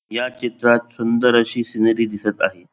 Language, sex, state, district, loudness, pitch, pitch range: Marathi, male, Goa, North and South Goa, -19 LUFS, 120 Hz, 115-120 Hz